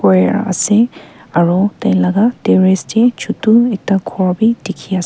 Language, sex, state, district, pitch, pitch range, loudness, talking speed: Nagamese, female, Nagaland, Kohima, 195 Hz, 180-225 Hz, -14 LUFS, 140 wpm